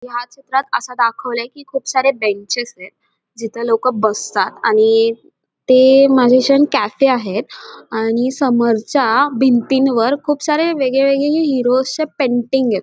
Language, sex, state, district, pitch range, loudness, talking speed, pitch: Marathi, female, Maharashtra, Dhule, 235-275 Hz, -15 LUFS, 130 wpm, 255 Hz